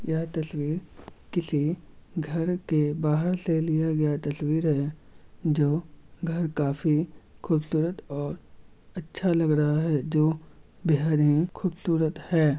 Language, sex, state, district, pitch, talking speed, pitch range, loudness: Magahi, male, Bihar, Gaya, 160 Hz, 120 wpm, 150-165 Hz, -27 LUFS